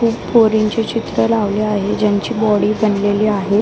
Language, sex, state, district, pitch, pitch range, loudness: Marathi, female, Maharashtra, Mumbai Suburban, 215 Hz, 205-225 Hz, -16 LUFS